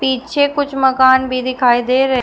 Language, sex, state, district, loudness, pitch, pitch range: Hindi, female, Uttar Pradesh, Shamli, -14 LUFS, 260 Hz, 255-270 Hz